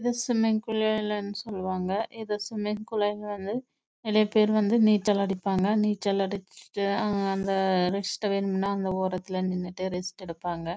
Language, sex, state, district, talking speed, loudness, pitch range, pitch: Tamil, female, Karnataka, Chamarajanagar, 45 wpm, -27 LUFS, 190-215 Hz, 200 Hz